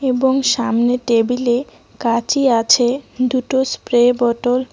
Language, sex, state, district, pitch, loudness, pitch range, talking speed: Bengali, female, West Bengal, Cooch Behar, 245 Hz, -16 LUFS, 240-260 Hz, 115 wpm